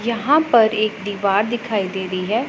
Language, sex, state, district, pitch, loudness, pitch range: Hindi, female, Punjab, Pathankot, 215 Hz, -18 LUFS, 200-235 Hz